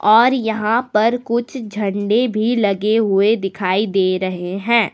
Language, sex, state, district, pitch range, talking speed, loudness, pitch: Hindi, female, Jharkhand, Deoghar, 195-235 Hz, 145 wpm, -17 LUFS, 215 Hz